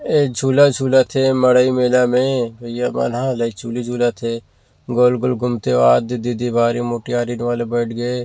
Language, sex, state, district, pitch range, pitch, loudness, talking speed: Chhattisgarhi, male, Chhattisgarh, Rajnandgaon, 120-125 Hz, 120 Hz, -17 LUFS, 180 wpm